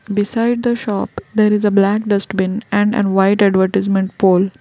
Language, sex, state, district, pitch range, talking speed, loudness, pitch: English, female, Gujarat, Valsad, 195-210 Hz, 170 wpm, -16 LUFS, 200 Hz